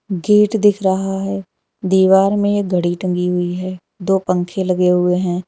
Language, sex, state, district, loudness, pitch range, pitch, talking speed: Hindi, female, Uttar Pradesh, Lalitpur, -16 LUFS, 180-195 Hz, 190 Hz, 175 wpm